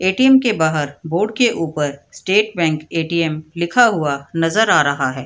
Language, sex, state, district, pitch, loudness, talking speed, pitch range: Hindi, female, Bihar, Madhepura, 165 Hz, -17 LUFS, 170 wpm, 150-210 Hz